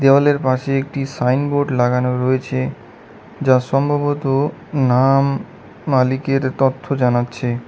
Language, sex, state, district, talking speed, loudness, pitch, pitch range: Bengali, male, West Bengal, Cooch Behar, 95 wpm, -18 LUFS, 135 Hz, 125-140 Hz